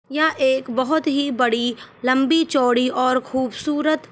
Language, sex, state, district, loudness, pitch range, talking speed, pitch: Hindi, female, Jharkhand, Jamtara, -20 LUFS, 255-300 Hz, 130 wpm, 260 Hz